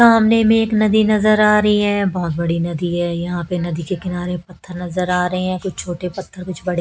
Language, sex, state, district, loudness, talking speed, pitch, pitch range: Hindi, female, Haryana, Jhajjar, -17 LUFS, 240 wpm, 180 Hz, 175-210 Hz